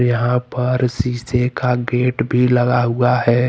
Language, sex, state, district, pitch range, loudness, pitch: Hindi, male, Jharkhand, Deoghar, 120-125 Hz, -17 LUFS, 125 Hz